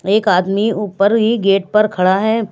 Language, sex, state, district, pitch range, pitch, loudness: Hindi, female, Bihar, West Champaran, 195-220 Hz, 205 Hz, -14 LUFS